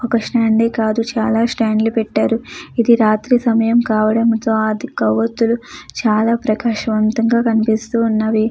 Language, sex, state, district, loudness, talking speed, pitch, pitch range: Telugu, female, Andhra Pradesh, Chittoor, -16 LUFS, 115 wpm, 225 Hz, 220-235 Hz